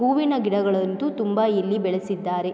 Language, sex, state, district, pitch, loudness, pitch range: Kannada, female, Karnataka, Mysore, 200 Hz, -23 LUFS, 190-225 Hz